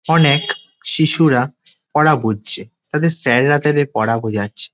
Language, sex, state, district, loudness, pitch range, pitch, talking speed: Bengali, male, West Bengal, Dakshin Dinajpur, -14 LUFS, 110-155 Hz, 145 Hz, 125 wpm